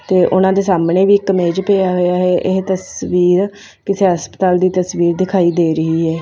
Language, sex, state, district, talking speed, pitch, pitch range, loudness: Punjabi, female, Punjab, Fazilka, 185 wpm, 185 Hz, 175-190 Hz, -14 LUFS